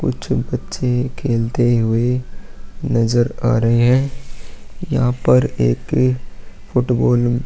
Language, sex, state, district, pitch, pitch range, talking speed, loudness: Hindi, male, Chhattisgarh, Korba, 120 Hz, 115-125 Hz, 105 wpm, -18 LUFS